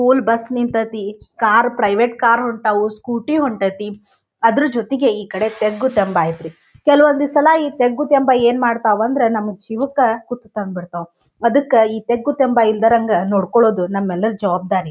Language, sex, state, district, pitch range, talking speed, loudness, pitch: Kannada, female, Karnataka, Dharwad, 210-250 Hz, 155 wpm, -16 LUFS, 230 Hz